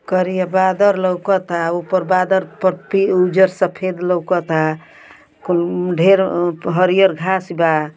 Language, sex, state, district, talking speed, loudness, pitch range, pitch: Bhojpuri, female, Uttar Pradesh, Ghazipur, 105 wpm, -16 LUFS, 175-190 Hz, 185 Hz